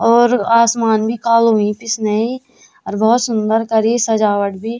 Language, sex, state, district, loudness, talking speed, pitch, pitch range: Garhwali, female, Uttarakhand, Tehri Garhwal, -15 LUFS, 150 wpm, 225 Hz, 220-235 Hz